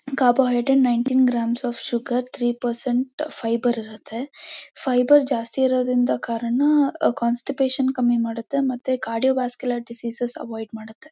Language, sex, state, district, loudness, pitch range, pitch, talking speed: Kannada, female, Karnataka, Mysore, -22 LUFS, 235-265 Hz, 245 Hz, 130 wpm